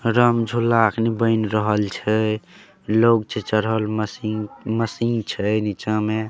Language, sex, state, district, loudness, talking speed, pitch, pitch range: Maithili, male, Bihar, Saharsa, -21 LUFS, 135 wpm, 110 Hz, 105-115 Hz